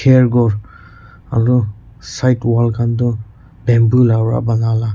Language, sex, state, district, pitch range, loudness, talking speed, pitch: Nagamese, male, Nagaland, Kohima, 110-120 Hz, -15 LUFS, 110 wpm, 115 Hz